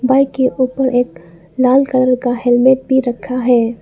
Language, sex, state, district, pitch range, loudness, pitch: Hindi, female, Arunachal Pradesh, Lower Dibang Valley, 245-260 Hz, -14 LUFS, 255 Hz